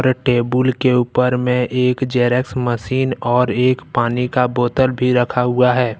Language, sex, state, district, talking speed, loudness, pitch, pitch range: Hindi, male, Jharkhand, Deoghar, 160 wpm, -17 LUFS, 125 Hz, 125-130 Hz